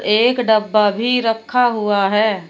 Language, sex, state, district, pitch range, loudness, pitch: Hindi, female, Uttar Pradesh, Shamli, 210-235 Hz, -16 LUFS, 220 Hz